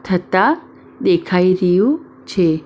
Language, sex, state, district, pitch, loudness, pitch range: Gujarati, female, Maharashtra, Mumbai Suburban, 185 Hz, -16 LUFS, 180-295 Hz